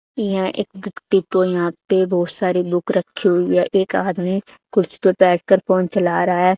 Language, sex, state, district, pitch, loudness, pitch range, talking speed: Hindi, female, Haryana, Charkhi Dadri, 185 Hz, -18 LUFS, 180-195 Hz, 190 wpm